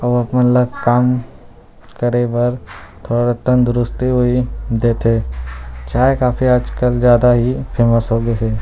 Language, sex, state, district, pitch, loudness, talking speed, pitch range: Chhattisgarhi, male, Chhattisgarh, Rajnandgaon, 120 Hz, -15 LUFS, 130 wpm, 115-125 Hz